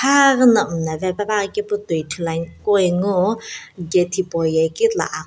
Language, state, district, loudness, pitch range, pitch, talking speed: Sumi, Nagaland, Dimapur, -19 LUFS, 165-210 Hz, 185 Hz, 160 wpm